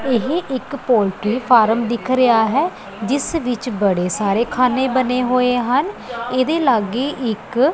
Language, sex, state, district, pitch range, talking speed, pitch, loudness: Punjabi, female, Punjab, Pathankot, 225-260 Hz, 140 wpm, 245 Hz, -18 LUFS